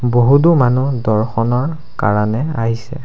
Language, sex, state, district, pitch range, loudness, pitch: Assamese, male, Assam, Sonitpur, 115-140 Hz, -15 LUFS, 120 Hz